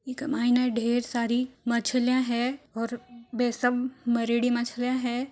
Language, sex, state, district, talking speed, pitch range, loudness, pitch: Marwari, female, Rajasthan, Churu, 160 wpm, 235-255 Hz, -27 LUFS, 245 Hz